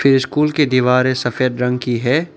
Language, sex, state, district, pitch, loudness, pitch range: Hindi, male, Arunachal Pradesh, Lower Dibang Valley, 130 Hz, -16 LUFS, 125-140 Hz